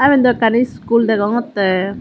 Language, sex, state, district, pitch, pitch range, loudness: Chakma, female, Tripura, Dhalai, 230 Hz, 205-245 Hz, -15 LUFS